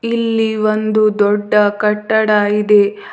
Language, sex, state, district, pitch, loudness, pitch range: Kannada, female, Karnataka, Bidar, 210 Hz, -14 LUFS, 210-220 Hz